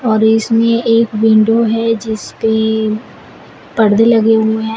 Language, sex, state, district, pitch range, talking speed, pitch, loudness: Hindi, female, Uttar Pradesh, Shamli, 220-230 Hz, 125 wpm, 225 Hz, -12 LUFS